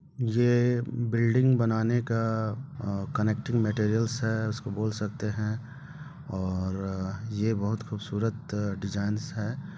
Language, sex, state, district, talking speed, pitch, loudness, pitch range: Hindi, male, Bihar, Gopalganj, 110 wpm, 110 Hz, -29 LUFS, 105-120 Hz